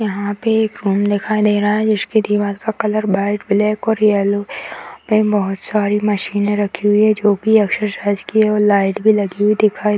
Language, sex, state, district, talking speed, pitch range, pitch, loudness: Hindi, female, Bihar, Madhepura, 230 wpm, 205-215 Hz, 210 Hz, -16 LUFS